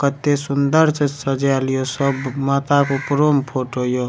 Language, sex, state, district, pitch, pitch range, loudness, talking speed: Maithili, male, Bihar, Supaul, 140 Hz, 135-145 Hz, -18 LUFS, 175 wpm